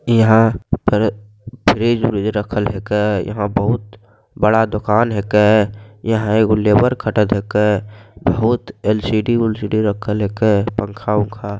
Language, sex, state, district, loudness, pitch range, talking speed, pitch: Angika, male, Bihar, Begusarai, -17 LUFS, 105-110 Hz, 145 wpm, 105 Hz